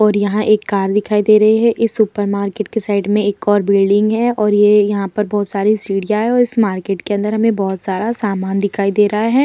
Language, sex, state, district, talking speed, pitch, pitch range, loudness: Hindi, female, Bihar, Vaishali, 255 wpm, 210 Hz, 200-215 Hz, -15 LUFS